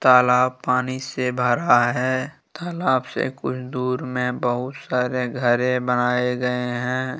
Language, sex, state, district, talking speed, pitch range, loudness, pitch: Hindi, male, Jharkhand, Deoghar, 135 wpm, 125-130 Hz, -22 LUFS, 125 Hz